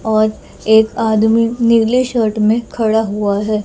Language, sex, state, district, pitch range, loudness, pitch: Hindi, female, Chhattisgarh, Raipur, 215-230 Hz, -14 LUFS, 220 Hz